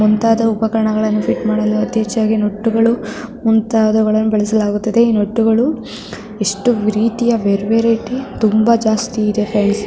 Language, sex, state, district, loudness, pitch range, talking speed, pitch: Kannada, female, Karnataka, Mysore, -15 LUFS, 215-230 Hz, 120 wpm, 220 Hz